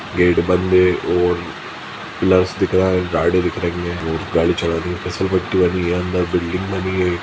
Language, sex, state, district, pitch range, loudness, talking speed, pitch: Hindi, male, Chhattisgarh, Sukma, 85-90 Hz, -18 LUFS, 180 wpm, 90 Hz